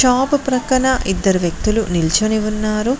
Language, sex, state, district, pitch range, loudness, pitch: Telugu, female, Telangana, Mahabubabad, 195-255 Hz, -17 LUFS, 215 Hz